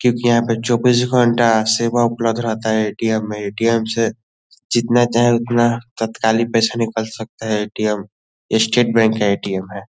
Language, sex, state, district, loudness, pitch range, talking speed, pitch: Hindi, male, Bihar, Lakhisarai, -17 LUFS, 110-120 Hz, 170 wpm, 115 Hz